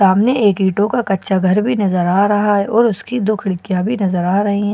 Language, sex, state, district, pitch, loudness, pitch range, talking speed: Hindi, female, Bihar, Katihar, 200 Hz, -15 LUFS, 190-215 Hz, 265 wpm